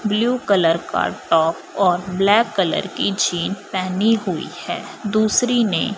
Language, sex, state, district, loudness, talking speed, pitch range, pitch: Hindi, female, Punjab, Fazilka, -19 LUFS, 140 wpm, 175-215 Hz, 195 Hz